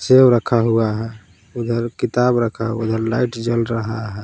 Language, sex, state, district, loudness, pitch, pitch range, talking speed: Hindi, male, Jharkhand, Palamu, -18 LUFS, 115 Hz, 110-120 Hz, 185 wpm